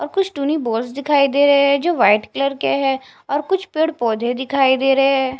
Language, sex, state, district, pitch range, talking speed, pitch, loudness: Hindi, female, Punjab, Fazilka, 265-290 Hz, 235 wpm, 275 Hz, -17 LUFS